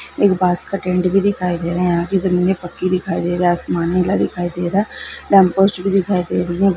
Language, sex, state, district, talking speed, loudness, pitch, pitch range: Maithili, female, Bihar, Begusarai, 255 wpm, -17 LUFS, 180 Hz, 175-195 Hz